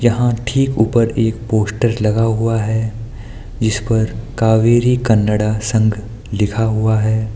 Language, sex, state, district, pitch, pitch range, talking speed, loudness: Hindi, male, Uttar Pradesh, Lucknow, 110 Hz, 110-115 Hz, 130 wpm, -16 LUFS